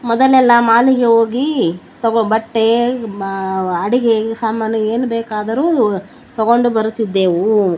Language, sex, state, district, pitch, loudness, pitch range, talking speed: Kannada, female, Karnataka, Bellary, 225 Hz, -15 LUFS, 215-240 Hz, 90 wpm